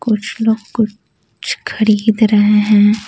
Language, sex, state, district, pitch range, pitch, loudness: Hindi, female, Bihar, Patna, 210-220 Hz, 215 Hz, -14 LUFS